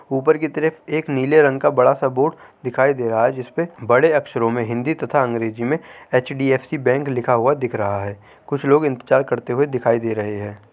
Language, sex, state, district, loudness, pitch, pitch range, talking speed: Hindi, male, Uttar Pradesh, Jyotiba Phule Nagar, -19 LUFS, 130 Hz, 115-145 Hz, 205 wpm